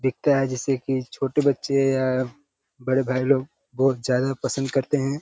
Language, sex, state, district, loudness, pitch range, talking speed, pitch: Hindi, male, Uttar Pradesh, Ghazipur, -23 LUFS, 130-140 Hz, 175 wpm, 135 Hz